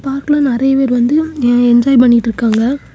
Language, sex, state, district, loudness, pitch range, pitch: Tamil, female, Tamil Nadu, Kanyakumari, -12 LUFS, 240-275 Hz, 255 Hz